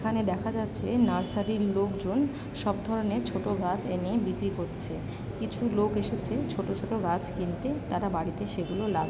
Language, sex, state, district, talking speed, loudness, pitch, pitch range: Bengali, female, West Bengal, Purulia, 160 wpm, -30 LUFS, 215 Hz, 200-225 Hz